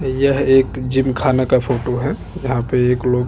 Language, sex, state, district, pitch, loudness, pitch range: Hindi, male, Chhattisgarh, Bastar, 130 Hz, -17 LUFS, 125-135 Hz